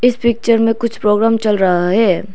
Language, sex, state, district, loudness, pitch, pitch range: Hindi, female, Arunachal Pradesh, Lower Dibang Valley, -14 LUFS, 225 Hz, 210-235 Hz